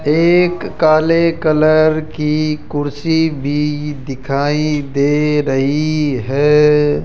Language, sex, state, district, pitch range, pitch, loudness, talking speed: Hindi, male, Rajasthan, Jaipur, 145-155 Hz, 150 Hz, -15 LUFS, 85 wpm